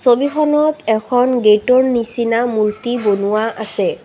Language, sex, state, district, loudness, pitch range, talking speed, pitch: Assamese, female, Assam, Kamrup Metropolitan, -15 LUFS, 215-255 Hz, 105 wpm, 240 Hz